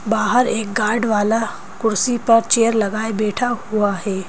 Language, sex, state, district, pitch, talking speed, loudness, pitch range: Hindi, female, Madhya Pradesh, Bhopal, 220 Hz, 155 wpm, -18 LUFS, 210-230 Hz